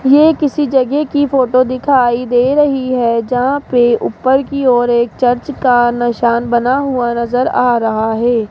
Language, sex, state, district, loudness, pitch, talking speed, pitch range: Hindi, female, Rajasthan, Jaipur, -13 LUFS, 250 Hz, 170 wpm, 240-275 Hz